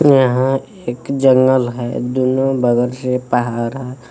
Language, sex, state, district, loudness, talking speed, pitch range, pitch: Hindi, male, Jharkhand, Palamu, -16 LUFS, 130 wpm, 120-130 Hz, 130 Hz